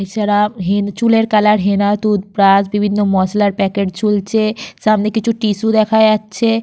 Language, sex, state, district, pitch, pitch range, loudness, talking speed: Bengali, female, Jharkhand, Sahebganj, 210 Hz, 200-220 Hz, -14 LUFS, 145 wpm